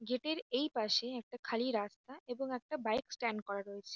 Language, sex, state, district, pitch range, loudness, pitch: Bengali, female, West Bengal, North 24 Parganas, 220-255 Hz, -38 LUFS, 245 Hz